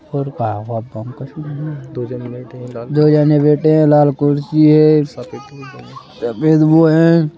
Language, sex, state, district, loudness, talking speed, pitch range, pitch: Hindi, male, Madhya Pradesh, Bhopal, -14 LUFS, 105 wpm, 125-155 Hz, 145 Hz